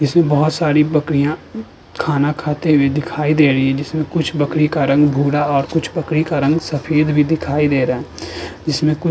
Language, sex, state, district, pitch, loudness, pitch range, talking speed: Hindi, male, Uttar Pradesh, Budaun, 150 Hz, -16 LUFS, 145-155 Hz, 200 wpm